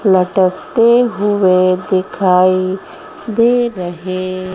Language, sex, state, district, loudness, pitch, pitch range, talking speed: Hindi, female, Madhya Pradesh, Dhar, -14 LUFS, 185 Hz, 185-230 Hz, 65 wpm